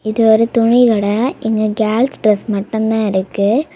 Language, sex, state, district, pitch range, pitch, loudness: Tamil, female, Tamil Nadu, Kanyakumari, 210-230 Hz, 220 Hz, -14 LUFS